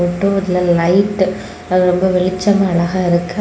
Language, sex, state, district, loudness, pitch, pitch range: Tamil, female, Tamil Nadu, Kanyakumari, -15 LUFS, 185 Hz, 175-195 Hz